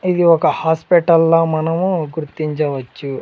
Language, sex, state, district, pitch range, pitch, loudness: Telugu, male, Andhra Pradesh, Sri Satya Sai, 155-170 Hz, 160 Hz, -16 LUFS